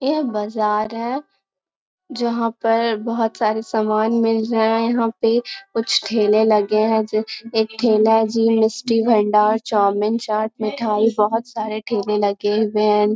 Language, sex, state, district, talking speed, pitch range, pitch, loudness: Hindi, female, Bihar, Jamui, 145 wpm, 215-230 Hz, 220 Hz, -19 LUFS